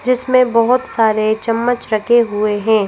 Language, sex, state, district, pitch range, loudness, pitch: Hindi, female, Madhya Pradesh, Bhopal, 215-245 Hz, -15 LUFS, 230 Hz